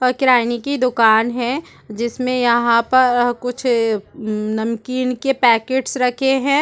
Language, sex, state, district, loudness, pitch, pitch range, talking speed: Hindi, female, Chhattisgarh, Rajnandgaon, -17 LUFS, 245 Hz, 235-255 Hz, 125 wpm